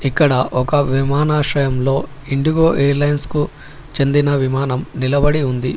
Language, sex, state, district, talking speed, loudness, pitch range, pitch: Telugu, male, Telangana, Hyderabad, 115 wpm, -17 LUFS, 135-145 Hz, 140 Hz